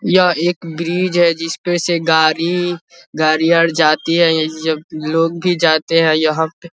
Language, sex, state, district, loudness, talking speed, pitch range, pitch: Hindi, male, Bihar, Vaishali, -15 LUFS, 170 wpm, 160-175 Hz, 165 Hz